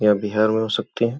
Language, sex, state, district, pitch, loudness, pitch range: Hindi, male, Uttar Pradesh, Gorakhpur, 110 Hz, -21 LUFS, 105-115 Hz